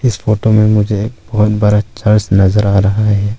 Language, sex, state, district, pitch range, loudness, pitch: Hindi, male, Arunachal Pradesh, Longding, 105-110 Hz, -12 LUFS, 105 Hz